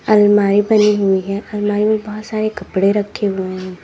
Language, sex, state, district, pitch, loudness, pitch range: Hindi, female, Uttar Pradesh, Lalitpur, 205 Hz, -16 LUFS, 195-210 Hz